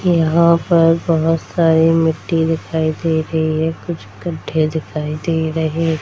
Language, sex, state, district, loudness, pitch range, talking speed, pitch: Hindi, female, Bihar, Darbhanga, -17 LUFS, 160-165 Hz, 150 wpm, 160 Hz